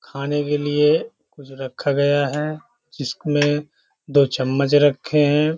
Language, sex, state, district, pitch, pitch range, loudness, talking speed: Hindi, male, Uttar Pradesh, Hamirpur, 145 Hz, 140-150 Hz, -20 LUFS, 130 wpm